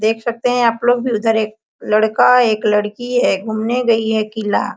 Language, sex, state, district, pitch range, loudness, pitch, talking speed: Hindi, female, Jharkhand, Sahebganj, 215-240 Hz, -16 LUFS, 225 Hz, 200 wpm